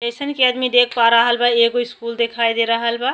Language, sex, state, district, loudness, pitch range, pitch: Bhojpuri, female, Uttar Pradesh, Ghazipur, -16 LUFS, 235-245 Hz, 235 Hz